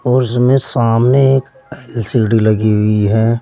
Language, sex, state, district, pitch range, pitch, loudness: Hindi, male, Uttar Pradesh, Saharanpur, 110-130 Hz, 120 Hz, -13 LUFS